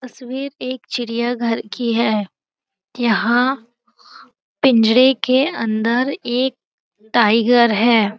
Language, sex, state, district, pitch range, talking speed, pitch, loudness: Hindi, female, Bihar, Saran, 225-255 Hz, 95 wpm, 240 Hz, -17 LUFS